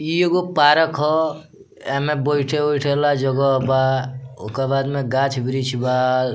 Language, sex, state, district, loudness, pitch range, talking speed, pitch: Bhojpuri, male, Bihar, Muzaffarpur, -19 LUFS, 130-150 Hz, 130 wpm, 135 Hz